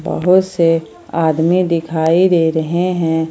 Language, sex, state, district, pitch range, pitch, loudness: Hindi, female, Jharkhand, Ranchi, 160-180 Hz, 165 Hz, -15 LUFS